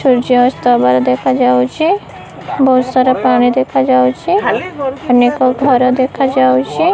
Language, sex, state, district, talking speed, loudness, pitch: Odia, male, Odisha, Khordha, 95 wpm, -12 LUFS, 250 Hz